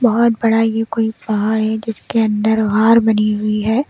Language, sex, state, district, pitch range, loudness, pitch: Hindi, female, Delhi, New Delhi, 215-225 Hz, -16 LUFS, 220 Hz